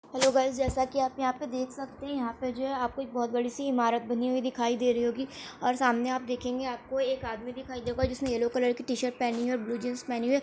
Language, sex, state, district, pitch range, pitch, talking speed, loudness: Hindi, female, Bihar, Saran, 245-265 Hz, 250 Hz, 270 wpm, -30 LUFS